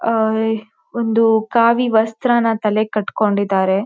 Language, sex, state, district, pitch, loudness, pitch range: Kannada, female, Karnataka, Shimoga, 220 Hz, -17 LUFS, 215-230 Hz